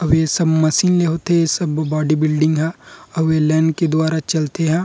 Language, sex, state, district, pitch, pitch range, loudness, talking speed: Chhattisgarhi, male, Chhattisgarh, Rajnandgaon, 160 Hz, 155-165 Hz, -17 LUFS, 220 wpm